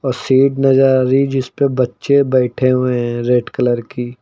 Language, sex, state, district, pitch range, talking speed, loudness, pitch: Hindi, male, Uttar Pradesh, Lucknow, 125-135 Hz, 200 wpm, -15 LUFS, 130 Hz